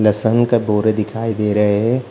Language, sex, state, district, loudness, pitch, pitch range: Hindi, male, Bihar, Jahanabad, -16 LUFS, 110 Hz, 105-115 Hz